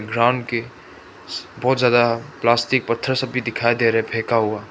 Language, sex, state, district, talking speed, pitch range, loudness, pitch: Hindi, male, Manipur, Imphal West, 165 wpm, 115-125 Hz, -19 LUFS, 120 Hz